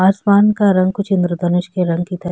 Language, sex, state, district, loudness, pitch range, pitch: Hindi, female, Chhattisgarh, Sukma, -15 LUFS, 175-200 Hz, 185 Hz